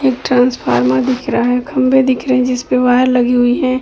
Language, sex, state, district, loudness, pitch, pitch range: Hindi, female, Uttar Pradesh, Deoria, -13 LUFS, 250 Hz, 245-255 Hz